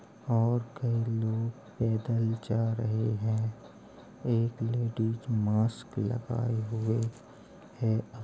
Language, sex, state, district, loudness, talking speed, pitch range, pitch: Hindi, male, Uttar Pradesh, Jalaun, -31 LUFS, 115 wpm, 110-115 Hz, 115 Hz